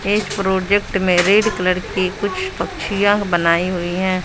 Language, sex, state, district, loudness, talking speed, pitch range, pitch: Hindi, female, Bihar, West Champaran, -17 LUFS, 155 wpm, 185-205 Hz, 190 Hz